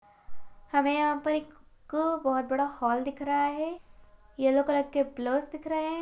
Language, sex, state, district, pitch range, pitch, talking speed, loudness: Hindi, female, Chhattisgarh, Balrampur, 270-305 Hz, 285 Hz, 170 wpm, -29 LUFS